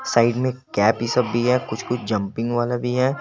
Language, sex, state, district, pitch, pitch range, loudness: Hindi, male, Jharkhand, Garhwa, 120 Hz, 115-125 Hz, -21 LUFS